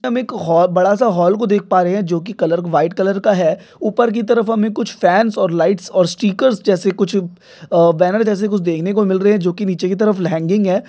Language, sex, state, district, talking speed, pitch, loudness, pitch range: Hindi, male, Maharashtra, Nagpur, 230 wpm, 195 Hz, -15 LUFS, 180-215 Hz